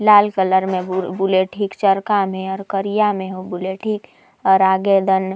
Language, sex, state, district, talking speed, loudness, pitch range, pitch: Sadri, female, Chhattisgarh, Jashpur, 190 wpm, -18 LUFS, 190-200 Hz, 190 Hz